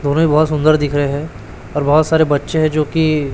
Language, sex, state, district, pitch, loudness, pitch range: Hindi, male, Chhattisgarh, Raipur, 150 Hz, -15 LUFS, 145-155 Hz